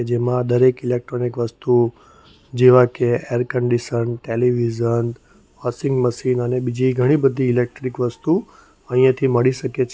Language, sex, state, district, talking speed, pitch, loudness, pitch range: Gujarati, male, Gujarat, Valsad, 135 wpm, 125 Hz, -19 LUFS, 120-130 Hz